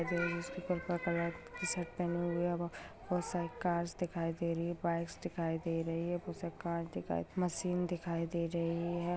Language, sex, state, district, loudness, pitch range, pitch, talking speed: Hindi, female, Bihar, Kishanganj, -37 LUFS, 170-175 Hz, 170 Hz, 205 wpm